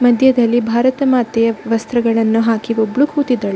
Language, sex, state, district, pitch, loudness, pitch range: Kannada, female, Karnataka, Dakshina Kannada, 235 Hz, -15 LUFS, 225-255 Hz